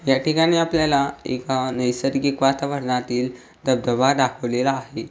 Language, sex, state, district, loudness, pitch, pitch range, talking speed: Marathi, male, Maharashtra, Aurangabad, -21 LUFS, 135 Hz, 125-140 Hz, 105 wpm